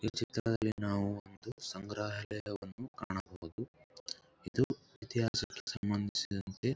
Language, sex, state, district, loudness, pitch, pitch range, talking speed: Kannada, male, Karnataka, Gulbarga, -38 LUFS, 105 Hz, 100-115 Hz, 100 wpm